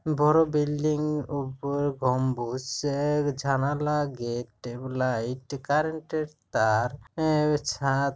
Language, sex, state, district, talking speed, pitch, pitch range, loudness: Bengali, male, West Bengal, Jhargram, 95 wpm, 140 Hz, 130-150 Hz, -27 LUFS